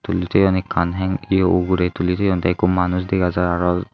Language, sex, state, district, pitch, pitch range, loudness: Chakma, male, Tripura, Unakoti, 90 Hz, 90-95 Hz, -19 LUFS